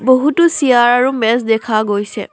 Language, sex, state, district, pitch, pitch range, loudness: Assamese, female, Assam, Kamrup Metropolitan, 240 Hz, 220-260 Hz, -13 LUFS